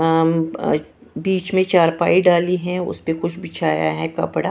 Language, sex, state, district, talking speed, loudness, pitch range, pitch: Hindi, female, Punjab, Kapurthala, 175 wpm, -19 LUFS, 165-180 Hz, 170 Hz